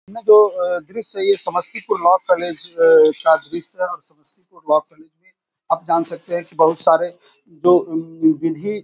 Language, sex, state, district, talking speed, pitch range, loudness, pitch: Hindi, male, Bihar, Samastipur, 190 wpm, 165-190 Hz, -17 LUFS, 175 Hz